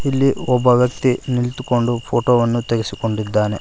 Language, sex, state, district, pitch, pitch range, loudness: Kannada, male, Karnataka, Koppal, 120 Hz, 115-125 Hz, -18 LUFS